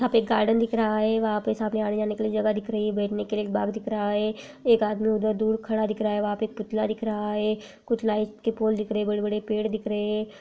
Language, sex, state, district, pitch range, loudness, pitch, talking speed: Hindi, female, Rajasthan, Nagaur, 210-220 Hz, -26 LUFS, 215 Hz, 280 wpm